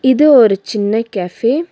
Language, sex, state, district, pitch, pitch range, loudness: Tamil, female, Tamil Nadu, Nilgiris, 230 Hz, 205-260 Hz, -13 LUFS